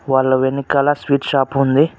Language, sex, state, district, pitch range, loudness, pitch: Telugu, male, Telangana, Mahabubabad, 135-140 Hz, -16 LUFS, 140 Hz